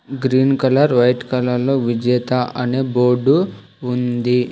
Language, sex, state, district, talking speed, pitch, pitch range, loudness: Telugu, male, Telangana, Hyderabad, 120 wpm, 125 Hz, 125-130 Hz, -17 LUFS